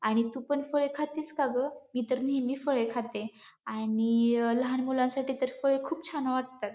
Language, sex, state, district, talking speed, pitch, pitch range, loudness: Marathi, female, Maharashtra, Pune, 175 wpm, 255 Hz, 235-275 Hz, -30 LUFS